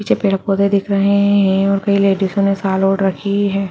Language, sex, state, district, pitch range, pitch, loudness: Hindi, female, Uttar Pradesh, Jyotiba Phule Nagar, 195-200 Hz, 195 Hz, -15 LUFS